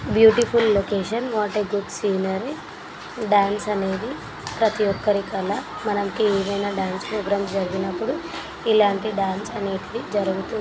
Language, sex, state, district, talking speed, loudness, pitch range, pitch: Telugu, female, Telangana, Nalgonda, 125 wpm, -23 LUFS, 195-215 Hz, 205 Hz